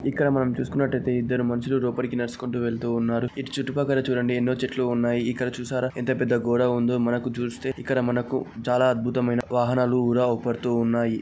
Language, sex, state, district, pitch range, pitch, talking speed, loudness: Telugu, male, Andhra Pradesh, Guntur, 120-130 Hz, 125 Hz, 155 wpm, -25 LUFS